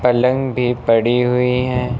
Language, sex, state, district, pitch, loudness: Hindi, male, Uttar Pradesh, Lucknow, 125 Hz, -16 LUFS